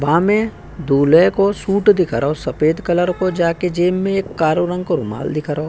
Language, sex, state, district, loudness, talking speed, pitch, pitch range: Hindi, male, Uttar Pradesh, Hamirpur, -17 LUFS, 200 wpm, 175 Hz, 155-185 Hz